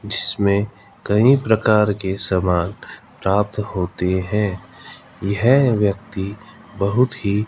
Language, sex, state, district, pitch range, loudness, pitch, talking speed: Hindi, male, Rajasthan, Jaipur, 100-110 Hz, -19 LUFS, 100 Hz, 105 wpm